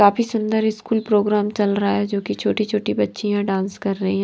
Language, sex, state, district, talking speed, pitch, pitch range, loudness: Hindi, female, Himachal Pradesh, Shimla, 210 wpm, 205 Hz, 200-215 Hz, -20 LUFS